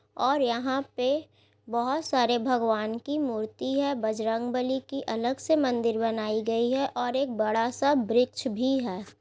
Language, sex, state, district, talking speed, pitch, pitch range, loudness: Hindi, female, Bihar, Gaya, 165 wpm, 245 Hz, 225-270 Hz, -27 LUFS